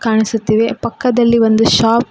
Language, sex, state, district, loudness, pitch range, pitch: Kannada, female, Karnataka, Koppal, -13 LUFS, 225-235 Hz, 225 Hz